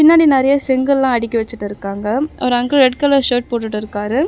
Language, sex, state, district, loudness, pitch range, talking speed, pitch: Tamil, female, Tamil Nadu, Chennai, -15 LUFS, 220-275 Hz, 185 wpm, 250 Hz